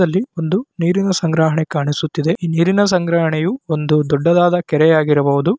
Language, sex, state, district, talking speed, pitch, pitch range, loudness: Kannada, male, Karnataka, Raichur, 130 wpm, 165 Hz, 155-180 Hz, -16 LUFS